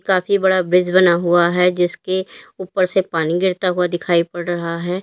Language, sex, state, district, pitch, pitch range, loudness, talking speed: Hindi, female, Uttar Pradesh, Lalitpur, 180 Hz, 175-185 Hz, -17 LUFS, 190 wpm